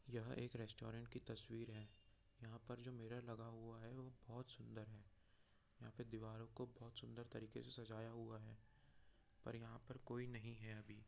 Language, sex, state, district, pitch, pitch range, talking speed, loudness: Hindi, male, Bihar, East Champaran, 115 Hz, 110-120 Hz, 190 wpm, -54 LUFS